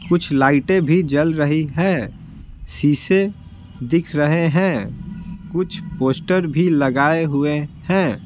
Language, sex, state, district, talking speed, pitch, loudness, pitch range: Hindi, male, Bihar, Patna, 115 wpm, 165 Hz, -18 LUFS, 145-185 Hz